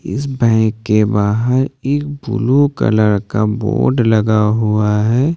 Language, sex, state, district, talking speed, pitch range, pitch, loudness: Hindi, male, Jharkhand, Ranchi, 135 wpm, 105-130 Hz, 110 Hz, -15 LUFS